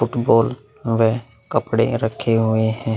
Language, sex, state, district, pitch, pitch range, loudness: Hindi, male, Bihar, Vaishali, 115 Hz, 110-120 Hz, -19 LUFS